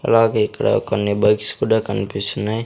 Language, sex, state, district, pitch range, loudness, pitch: Telugu, male, Andhra Pradesh, Sri Satya Sai, 100-110 Hz, -19 LUFS, 105 Hz